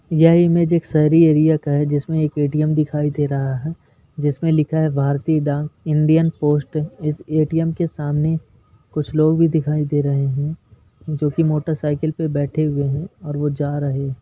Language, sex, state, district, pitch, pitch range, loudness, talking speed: Hindi, male, Bihar, Gaya, 150 Hz, 145-160 Hz, -19 LUFS, 185 wpm